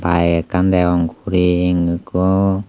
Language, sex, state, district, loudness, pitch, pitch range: Chakma, male, Tripura, Dhalai, -16 LUFS, 90 Hz, 85-95 Hz